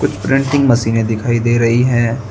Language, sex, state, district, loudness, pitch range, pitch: Hindi, male, Uttar Pradesh, Saharanpur, -14 LUFS, 115-125 Hz, 120 Hz